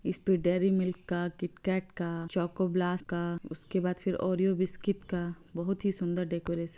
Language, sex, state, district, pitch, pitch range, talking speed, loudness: Hindi, female, Bihar, Gopalganj, 180 Hz, 170-185 Hz, 185 wpm, -32 LUFS